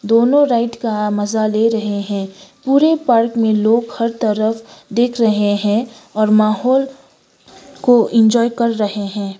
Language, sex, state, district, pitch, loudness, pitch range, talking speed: Hindi, female, Sikkim, Gangtok, 225 Hz, -16 LUFS, 210-235 Hz, 145 wpm